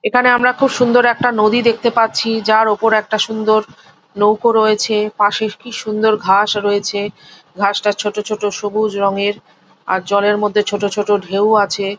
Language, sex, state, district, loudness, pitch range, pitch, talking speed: Bengali, female, West Bengal, Jhargram, -15 LUFS, 205-220 Hz, 215 Hz, 160 wpm